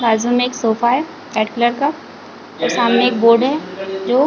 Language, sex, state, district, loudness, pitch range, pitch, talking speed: Hindi, female, Chhattisgarh, Bilaspur, -16 LUFS, 225-255 Hz, 240 Hz, 195 wpm